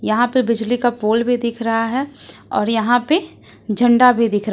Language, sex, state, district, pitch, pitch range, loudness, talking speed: Hindi, female, Jharkhand, Ranchi, 235 Hz, 225-245 Hz, -17 LUFS, 210 wpm